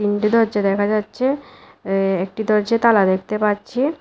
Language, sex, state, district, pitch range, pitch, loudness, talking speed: Bengali, female, Tripura, West Tripura, 200-230 Hz, 210 Hz, -19 LUFS, 135 wpm